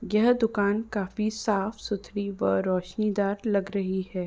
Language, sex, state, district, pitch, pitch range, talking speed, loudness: Hindi, female, Uttar Pradesh, Ghazipur, 205 Hz, 190-215 Hz, 125 wpm, -27 LUFS